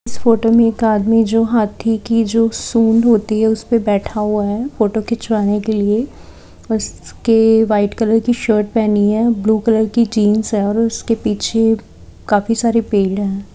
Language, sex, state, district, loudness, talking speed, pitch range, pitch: Hindi, female, Haryana, Charkhi Dadri, -15 LUFS, 180 wpm, 210-230 Hz, 225 Hz